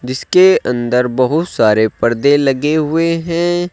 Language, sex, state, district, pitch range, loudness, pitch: Hindi, male, Uttar Pradesh, Saharanpur, 125-165 Hz, -13 LUFS, 145 Hz